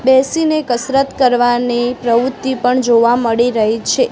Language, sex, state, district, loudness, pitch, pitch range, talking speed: Gujarati, female, Gujarat, Gandhinagar, -14 LUFS, 245 Hz, 240-265 Hz, 130 wpm